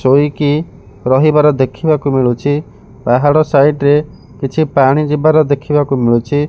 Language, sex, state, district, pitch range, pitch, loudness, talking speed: Odia, male, Odisha, Malkangiri, 130-150 Hz, 145 Hz, -12 LUFS, 110 wpm